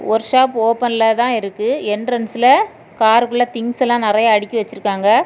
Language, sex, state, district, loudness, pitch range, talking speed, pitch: Tamil, female, Tamil Nadu, Kanyakumari, -16 LUFS, 215-245 Hz, 135 wpm, 230 Hz